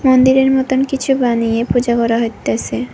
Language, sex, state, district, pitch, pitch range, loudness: Bengali, female, Tripura, West Tripura, 245 Hz, 230-265 Hz, -15 LUFS